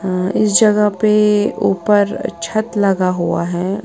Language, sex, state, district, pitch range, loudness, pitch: Hindi, female, Uttar Pradesh, Lalitpur, 185-210 Hz, -15 LUFS, 200 Hz